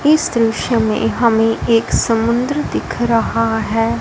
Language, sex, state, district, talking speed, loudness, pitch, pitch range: Hindi, female, Punjab, Fazilka, 135 wpm, -16 LUFS, 230 Hz, 225-240 Hz